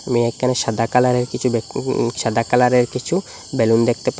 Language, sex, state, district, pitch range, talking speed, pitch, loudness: Bengali, male, Assam, Hailakandi, 115-125 Hz, 200 wpm, 125 Hz, -18 LUFS